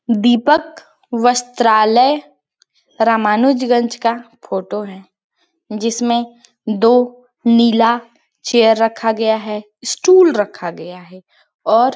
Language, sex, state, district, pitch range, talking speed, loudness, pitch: Hindi, female, Chhattisgarh, Balrampur, 220-245 Hz, 90 wpm, -15 LUFS, 235 Hz